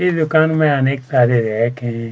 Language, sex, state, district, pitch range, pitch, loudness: Hindi, male, Chhattisgarh, Kabirdham, 120-155 Hz, 130 Hz, -16 LUFS